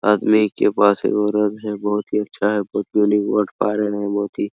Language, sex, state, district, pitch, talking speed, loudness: Hindi, male, Bihar, Araria, 105 Hz, 185 wpm, -19 LUFS